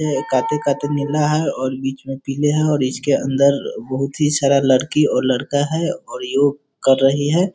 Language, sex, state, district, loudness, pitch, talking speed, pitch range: Hindi, male, Bihar, Sitamarhi, -18 LUFS, 140 Hz, 190 wpm, 135-150 Hz